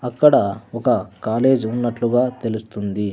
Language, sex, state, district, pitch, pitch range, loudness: Telugu, male, Andhra Pradesh, Sri Satya Sai, 120 Hz, 110-125 Hz, -19 LUFS